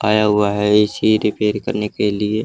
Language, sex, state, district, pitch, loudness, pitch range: Hindi, male, Haryana, Charkhi Dadri, 105 Hz, -17 LUFS, 105-110 Hz